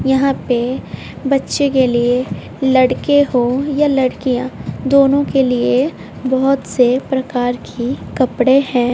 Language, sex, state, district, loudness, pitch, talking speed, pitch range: Hindi, female, Bihar, West Champaran, -15 LUFS, 260 Hz, 120 wpm, 250-275 Hz